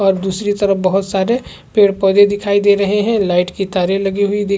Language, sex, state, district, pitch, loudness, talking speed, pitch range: Hindi, male, Chhattisgarh, Korba, 200 Hz, -15 LUFS, 210 wpm, 195-205 Hz